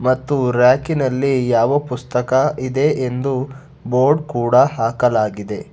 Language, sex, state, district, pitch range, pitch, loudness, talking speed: Kannada, male, Karnataka, Bangalore, 125-140 Hz, 130 Hz, -17 LUFS, 95 wpm